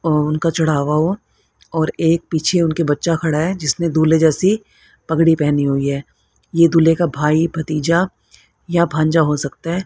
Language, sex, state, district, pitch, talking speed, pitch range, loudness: Hindi, female, Haryana, Rohtak, 160 Hz, 170 wpm, 155-170 Hz, -17 LUFS